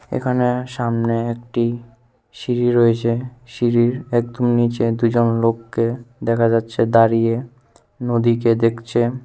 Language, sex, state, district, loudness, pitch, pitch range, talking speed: Bengali, male, Tripura, West Tripura, -19 LUFS, 120 Hz, 115-120 Hz, 95 wpm